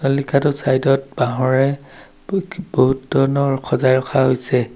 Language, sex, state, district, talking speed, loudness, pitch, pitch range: Assamese, male, Assam, Sonitpur, 115 wpm, -18 LUFS, 135 Hz, 130-140 Hz